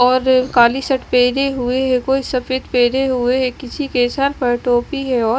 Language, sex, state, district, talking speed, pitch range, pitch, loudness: Hindi, female, Chandigarh, Chandigarh, 210 wpm, 245-265 Hz, 255 Hz, -16 LUFS